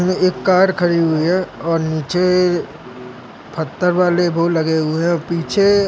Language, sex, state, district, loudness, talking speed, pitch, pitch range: Hindi, male, Maharashtra, Nagpur, -17 LUFS, 145 wpm, 175 Hz, 165-180 Hz